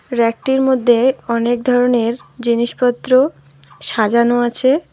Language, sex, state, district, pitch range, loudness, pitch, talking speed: Bengali, female, West Bengal, Alipurduar, 235-255 Hz, -16 LUFS, 240 Hz, 85 wpm